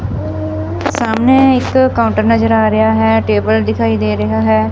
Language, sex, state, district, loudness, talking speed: Punjabi, female, Punjab, Fazilka, -13 LUFS, 150 wpm